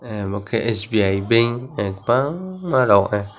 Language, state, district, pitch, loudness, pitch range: Kokborok, Tripura, West Tripura, 115 Hz, -19 LUFS, 100-125 Hz